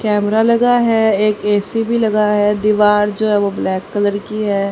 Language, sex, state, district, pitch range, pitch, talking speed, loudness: Hindi, female, Haryana, Rohtak, 205-220 Hz, 210 Hz, 205 wpm, -15 LUFS